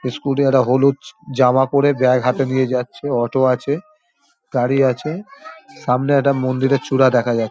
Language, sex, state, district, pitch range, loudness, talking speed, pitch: Bengali, male, West Bengal, Dakshin Dinajpur, 125-145 Hz, -17 LUFS, 160 wpm, 135 Hz